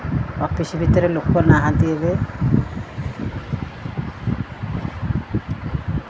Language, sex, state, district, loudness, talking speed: Odia, female, Odisha, Khordha, -21 LUFS, 60 wpm